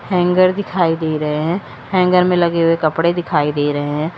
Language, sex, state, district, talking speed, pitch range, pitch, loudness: Hindi, female, Uttar Pradesh, Lalitpur, 200 wpm, 150-180 Hz, 165 Hz, -16 LUFS